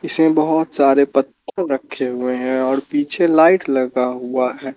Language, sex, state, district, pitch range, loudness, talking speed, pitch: Hindi, male, Chandigarh, Chandigarh, 130-160 Hz, -17 LUFS, 165 wpm, 135 Hz